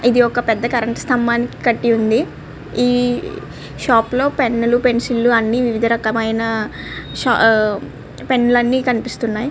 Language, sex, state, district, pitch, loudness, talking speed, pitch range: Telugu, female, Andhra Pradesh, Srikakulam, 235 Hz, -17 LUFS, 145 wpm, 225-245 Hz